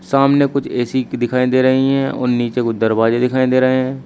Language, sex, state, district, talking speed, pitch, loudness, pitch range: Hindi, male, Uttar Pradesh, Shamli, 220 wpm, 130 Hz, -16 LUFS, 120-135 Hz